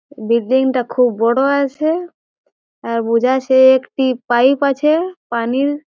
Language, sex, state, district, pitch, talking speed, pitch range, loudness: Bengali, female, West Bengal, Jhargram, 260 Hz, 120 wpm, 240-280 Hz, -15 LUFS